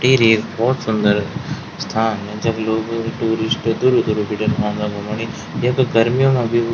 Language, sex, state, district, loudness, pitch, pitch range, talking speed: Garhwali, male, Uttarakhand, Tehri Garhwal, -18 LUFS, 110 Hz, 105-115 Hz, 150 wpm